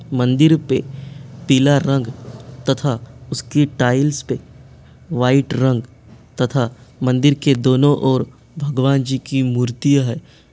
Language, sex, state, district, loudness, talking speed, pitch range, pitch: Hindi, male, Jharkhand, Sahebganj, -17 LUFS, 115 wpm, 125-140 Hz, 130 Hz